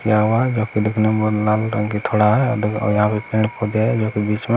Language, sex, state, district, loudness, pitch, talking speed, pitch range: Hindi, male, Bihar, Bhagalpur, -18 LUFS, 110 Hz, 275 wpm, 105-110 Hz